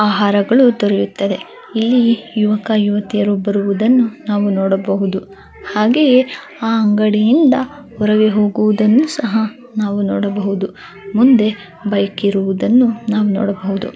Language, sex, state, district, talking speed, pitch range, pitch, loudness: Kannada, female, Karnataka, Dakshina Kannada, 95 wpm, 200-230 Hz, 210 Hz, -15 LUFS